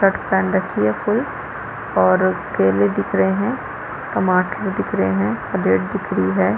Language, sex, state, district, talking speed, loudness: Hindi, female, Chhattisgarh, Balrampur, 155 wpm, -19 LUFS